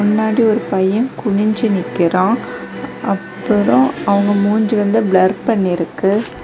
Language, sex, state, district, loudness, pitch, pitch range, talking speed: Tamil, female, Tamil Nadu, Kanyakumari, -15 LUFS, 205 Hz, 190-220 Hz, 100 wpm